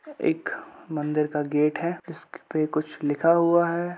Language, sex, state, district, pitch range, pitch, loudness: Hindi, male, Uttar Pradesh, Budaun, 150-170 Hz, 165 Hz, -25 LUFS